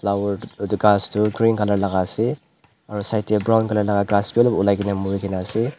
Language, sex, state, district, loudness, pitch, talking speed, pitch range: Nagamese, male, Nagaland, Dimapur, -20 LUFS, 105 Hz, 195 wpm, 100-110 Hz